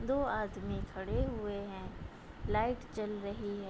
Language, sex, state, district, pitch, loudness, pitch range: Hindi, female, Uttar Pradesh, Budaun, 210 Hz, -38 LUFS, 200-220 Hz